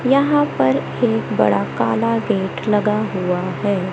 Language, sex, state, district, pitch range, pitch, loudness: Hindi, male, Madhya Pradesh, Katni, 185-230 Hz, 210 Hz, -18 LUFS